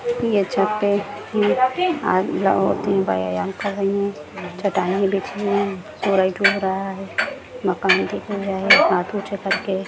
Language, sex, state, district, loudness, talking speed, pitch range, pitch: Hindi, female, Bihar, Lakhisarai, -20 LUFS, 105 wpm, 190-205 Hz, 195 Hz